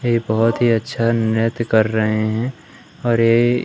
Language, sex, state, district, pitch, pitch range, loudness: Hindi, male, Madhya Pradesh, Umaria, 115 Hz, 110-120 Hz, -18 LUFS